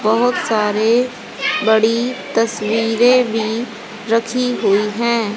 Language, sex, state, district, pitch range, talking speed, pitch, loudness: Hindi, female, Haryana, Jhajjar, 220-240 Hz, 90 wpm, 230 Hz, -16 LUFS